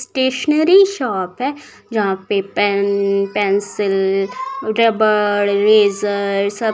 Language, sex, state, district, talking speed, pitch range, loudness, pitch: Hindi, female, Bihar, Muzaffarpur, 90 wpm, 200-230 Hz, -16 LUFS, 205 Hz